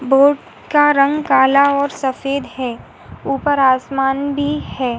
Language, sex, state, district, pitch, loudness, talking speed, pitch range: Hindi, female, Uttar Pradesh, Hamirpur, 275 Hz, -16 LUFS, 130 wpm, 265-285 Hz